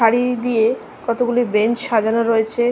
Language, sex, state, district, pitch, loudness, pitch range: Bengali, female, West Bengal, Malda, 230 Hz, -18 LUFS, 225-245 Hz